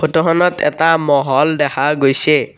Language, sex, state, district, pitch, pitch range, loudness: Assamese, male, Assam, Kamrup Metropolitan, 150 Hz, 145-160 Hz, -14 LUFS